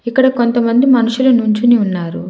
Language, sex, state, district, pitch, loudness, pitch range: Telugu, female, Telangana, Hyderabad, 235 Hz, -13 LUFS, 230-255 Hz